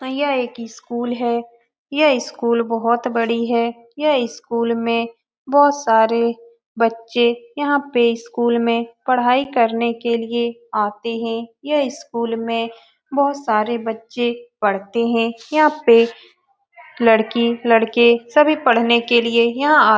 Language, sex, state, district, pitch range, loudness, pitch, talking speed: Hindi, female, Bihar, Saran, 230-250 Hz, -18 LUFS, 235 Hz, 135 wpm